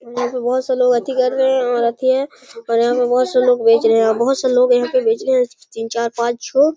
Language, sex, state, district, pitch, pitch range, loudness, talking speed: Hindi, male, Bihar, Gaya, 250 Hz, 235-260 Hz, -16 LUFS, 325 wpm